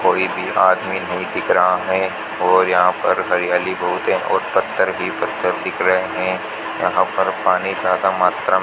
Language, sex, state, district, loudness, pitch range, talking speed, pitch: Hindi, male, Rajasthan, Bikaner, -18 LUFS, 90-95 Hz, 195 wpm, 95 Hz